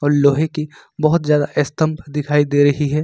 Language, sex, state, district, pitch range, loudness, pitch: Hindi, male, Jharkhand, Ranchi, 145-155 Hz, -17 LUFS, 150 Hz